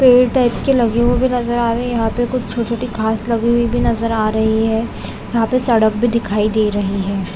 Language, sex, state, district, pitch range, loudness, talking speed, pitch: Hindi, female, Chhattisgarh, Raigarh, 220-240 Hz, -16 LUFS, 235 wpm, 235 Hz